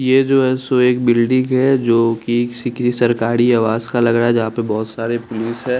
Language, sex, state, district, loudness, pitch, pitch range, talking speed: Hindi, male, Bihar, West Champaran, -16 LUFS, 120 Hz, 115-125 Hz, 225 wpm